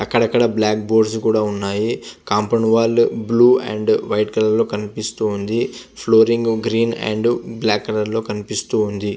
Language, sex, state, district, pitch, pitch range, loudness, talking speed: Telugu, male, Andhra Pradesh, Visakhapatnam, 110 Hz, 105-115 Hz, -18 LUFS, 150 wpm